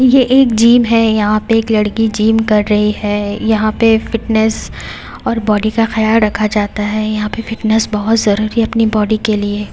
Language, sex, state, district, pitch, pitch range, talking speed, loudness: Hindi, female, Haryana, Jhajjar, 220 Hz, 210-225 Hz, 195 wpm, -13 LUFS